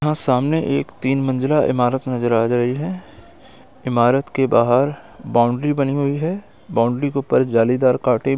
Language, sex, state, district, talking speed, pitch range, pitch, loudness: Hindi, male, Bihar, East Champaran, 150 wpm, 120-145 Hz, 130 Hz, -18 LUFS